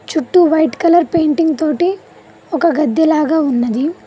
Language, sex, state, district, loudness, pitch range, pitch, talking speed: Telugu, female, Telangana, Mahabubabad, -14 LUFS, 305-340 Hz, 320 Hz, 135 wpm